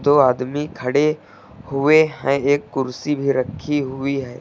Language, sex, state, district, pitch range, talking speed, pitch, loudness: Hindi, male, Uttar Pradesh, Lucknow, 130-145 Hz, 150 wpm, 140 Hz, -19 LUFS